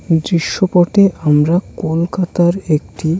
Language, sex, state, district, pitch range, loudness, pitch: Bengali, male, West Bengal, Kolkata, 160-180 Hz, -15 LUFS, 170 Hz